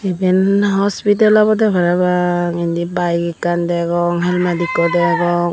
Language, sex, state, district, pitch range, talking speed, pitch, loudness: Chakma, female, Tripura, Unakoti, 175-190 Hz, 120 wpm, 175 Hz, -15 LUFS